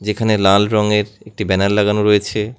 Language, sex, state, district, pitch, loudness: Bengali, male, West Bengal, Alipurduar, 105 Hz, -15 LUFS